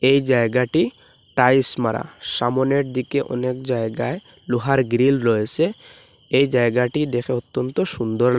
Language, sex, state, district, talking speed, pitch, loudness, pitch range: Bengali, male, Assam, Hailakandi, 115 wpm, 125 Hz, -20 LUFS, 120-135 Hz